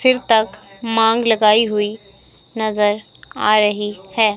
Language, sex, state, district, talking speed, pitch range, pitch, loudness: Hindi, female, Himachal Pradesh, Shimla, 125 wpm, 210-225 Hz, 215 Hz, -16 LUFS